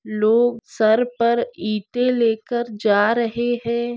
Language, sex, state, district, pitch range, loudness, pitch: Hindi, female, Maharashtra, Aurangabad, 220-240 Hz, -20 LUFS, 235 Hz